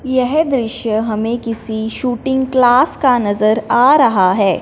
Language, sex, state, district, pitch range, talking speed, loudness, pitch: Hindi, male, Punjab, Fazilka, 220-260 Hz, 145 wpm, -14 LUFS, 240 Hz